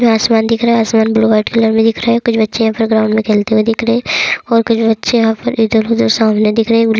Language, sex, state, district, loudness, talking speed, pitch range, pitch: Hindi, female, Andhra Pradesh, Chittoor, -12 LUFS, 285 wpm, 220-230 Hz, 225 Hz